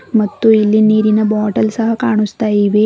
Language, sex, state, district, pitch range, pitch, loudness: Kannada, female, Karnataka, Bidar, 210-220 Hz, 215 Hz, -13 LUFS